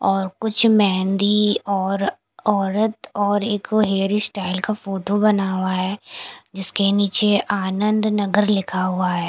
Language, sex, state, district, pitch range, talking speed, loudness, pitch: Hindi, female, Punjab, Kapurthala, 195-210 Hz, 135 wpm, -20 LUFS, 200 Hz